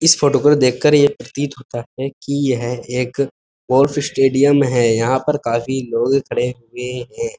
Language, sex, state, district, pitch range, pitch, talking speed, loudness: Hindi, male, Uttar Pradesh, Jyotiba Phule Nagar, 125-145 Hz, 135 Hz, 180 wpm, -17 LUFS